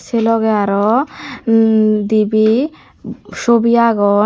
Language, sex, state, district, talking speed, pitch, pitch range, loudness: Chakma, female, Tripura, Dhalai, 100 wpm, 225 Hz, 215-235 Hz, -14 LUFS